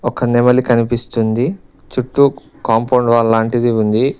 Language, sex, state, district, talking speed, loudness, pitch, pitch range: Telugu, male, Telangana, Mahabubabad, 115 wpm, -15 LUFS, 120 Hz, 115-125 Hz